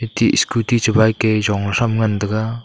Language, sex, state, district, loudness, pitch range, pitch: Wancho, male, Arunachal Pradesh, Longding, -17 LUFS, 105-115 Hz, 110 Hz